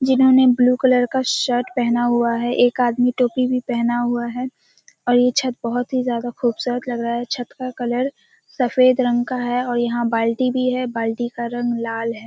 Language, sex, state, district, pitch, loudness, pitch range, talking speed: Hindi, female, Bihar, Kishanganj, 245 Hz, -19 LUFS, 240-255 Hz, 205 wpm